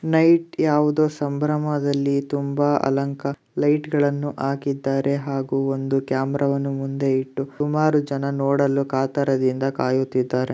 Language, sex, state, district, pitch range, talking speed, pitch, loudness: Kannada, male, Karnataka, Dakshina Kannada, 135-145 Hz, 100 wpm, 140 Hz, -22 LUFS